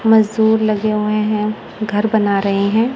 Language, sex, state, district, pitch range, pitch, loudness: Hindi, female, Punjab, Kapurthala, 210-220 Hz, 215 Hz, -16 LUFS